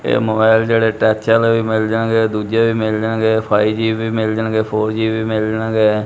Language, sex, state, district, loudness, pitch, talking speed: Punjabi, male, Punjab, Kapurthala, -16 LUFS, 110 Hz, 220 wpm